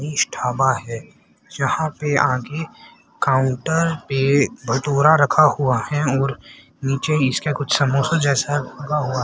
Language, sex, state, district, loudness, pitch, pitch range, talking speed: Hindi, male, Haryana, Rohtak, -19 LUFS, 140 Hz, 135-150 Hz, 125 wpm